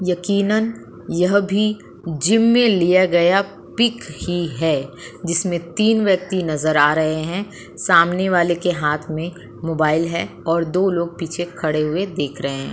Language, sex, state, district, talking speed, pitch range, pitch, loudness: Hindi, female, Uttar Pradesh, Budaun, 155 wpm, 160-190 Hz, 175 Hz, -19 LUFS